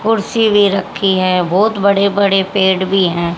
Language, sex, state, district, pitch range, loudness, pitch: Hindi, female, Haryana, Charkhi Dadri, 185-205 Hz, -13 LUFS, 195 Hz